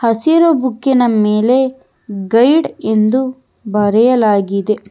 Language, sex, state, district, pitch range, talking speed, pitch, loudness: Kannada, female, Karnataka, Bangalore, 210-260 Hz, 75 wpm, 230 Hz, -13 LUFS